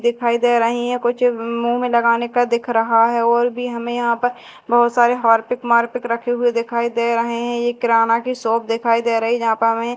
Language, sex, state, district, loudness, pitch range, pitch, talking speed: Hindi, female, Madhya Pradesh, Dhar, -18 LUFS, 230-240 Hz, 235 Hz, 225 wpm